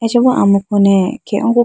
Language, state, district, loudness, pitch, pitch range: Idu Mishmi, Arunachal Pradesh, Lower Dibang Valley, -13 LUFS, 215 Hz, 200-240 Hz